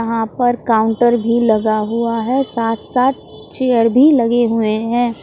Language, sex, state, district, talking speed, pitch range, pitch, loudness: Hindi, female, Jharkhand, Palamu, 160 wpm, 225-245 Hz, 230 Hz, -15 LUFS